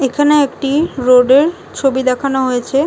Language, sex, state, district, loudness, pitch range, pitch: Bengali, female, West Bengal, Kolkata, -13 LUFS, 260-290 Hz, 270 Hz